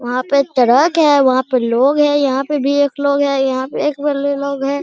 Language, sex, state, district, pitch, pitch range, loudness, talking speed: Hindi, male, Bihar, Araria, 280 Hz, 260-285 Hz, -15 LUFS, 285 wpm